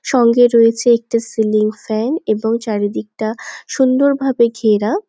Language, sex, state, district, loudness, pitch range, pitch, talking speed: Bengali, female, West Bengal, Jhargram, -15 LUFS, 215-245 Hz, 230 Hz, 105 wpm